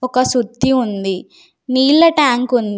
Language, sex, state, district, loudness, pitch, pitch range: Telugu, female, Telangana, Komaram Bheem, -14 LUFS, 255 Hz, 235-265 Hz